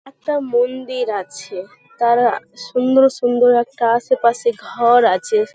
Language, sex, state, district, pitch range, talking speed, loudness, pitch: Bengali, female, West Bengal, Malda, 230-255 Hz, 110 wpm, -16 LUFS, 240 Hz